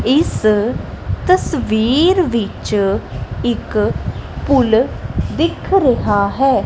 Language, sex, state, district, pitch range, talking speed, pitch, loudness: Punjabi, female, Punjab, Kapurthala, 215-285 Hz, 70 wpm, 240 Hz, -16 LUFS